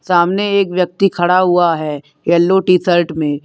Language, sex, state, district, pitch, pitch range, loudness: Hindi, male, Uttar Pradesh, Lalitpur, 175 Hz, 165-185 Hz, -14 LUFS